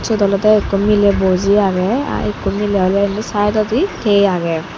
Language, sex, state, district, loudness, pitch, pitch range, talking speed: Chakma, female, Tripura, Unakoti, -15 LUFS, 200 Hz, 195-210 Hz, 150 wpm